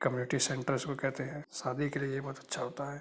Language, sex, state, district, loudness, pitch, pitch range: Hindi, male, Uttar Pradesh, Varanasi, -35 LUFS, 135 Hz, 135-140 Hz